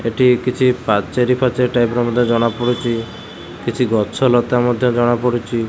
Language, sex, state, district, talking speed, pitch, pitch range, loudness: Odia, male, Odisha, Khordha, 160 wpm, 120 Hz, 115-125 Hz, -16 LUFS